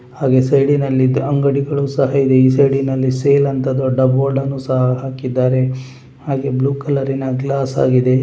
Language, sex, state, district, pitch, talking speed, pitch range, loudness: Kannada, male, Karnataka, Gulbarga, 135 Hz, 170 wpm, 130-140 Hz, -16 LUFS